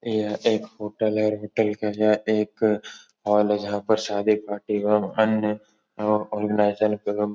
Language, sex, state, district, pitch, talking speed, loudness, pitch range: Hindi, male, Uttar Pradesh, Etah, 105 Hz, 155 wpm, -24 LUFS, 105-110 Hz